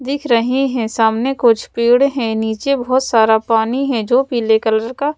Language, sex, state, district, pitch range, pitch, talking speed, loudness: Hindi, female, Madhya Pradesh, Bhopal, 225-265 Hz, 240 Hz, 185 wpm, -15 LUFS